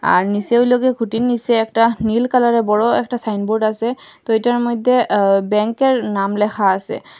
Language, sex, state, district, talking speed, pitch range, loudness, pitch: Bengali, female, Assam, Hailakandi, 165 wpm, 210-240 Hz, -16 LUFS, 230 Hz